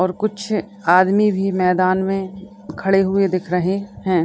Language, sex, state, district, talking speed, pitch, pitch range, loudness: Hindi, female, Bihar, Gopalganj, 155 wpm, 195 Hz, 185-200 Hz, -18 LUFS